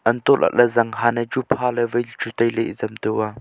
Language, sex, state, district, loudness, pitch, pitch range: Wancho, male, Arunachal Pradesh, Longding, -20 LUFS, 120 Hz, 115-120 Hz